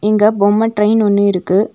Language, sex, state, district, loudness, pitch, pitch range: Tamil, female, Tamil Nadu, Nilgiris, -13 LUFS, 210 Hz, 200-215 Hz